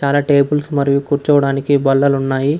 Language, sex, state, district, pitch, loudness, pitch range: Telugu, male, Karnataka, Bangalore, 140 Hz, -15 LUFS, 140-145 Hz